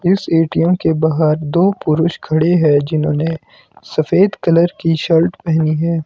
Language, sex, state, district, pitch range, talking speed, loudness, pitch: Hindi, male, Himachal Pradesh, Shimla, 155-170 Hz, 150 wpm, -15 LUFS, 165 Hz